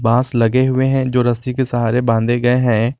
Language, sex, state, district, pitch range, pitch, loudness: Hindi, male, Jharkhand, Garhwa, 115-130 Hz, 120 Hz, -16 LUFS